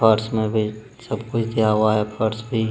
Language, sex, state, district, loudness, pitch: Hindi, male, Uttar Pradesh, Jalaun, -21 LUFS, 110 Hz